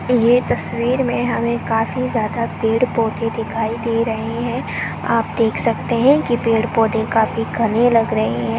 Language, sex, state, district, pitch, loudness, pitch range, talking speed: Hindi, female, Chhattisgarh, Sarguja, 230 Hz, -18 LUFS, 225-235 Hz, 155 wpm